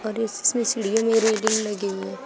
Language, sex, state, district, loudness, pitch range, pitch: Hindi, female, Uttar Pradesh, Shamli, -22 LUFS, 205-225 Hz, 220 Hz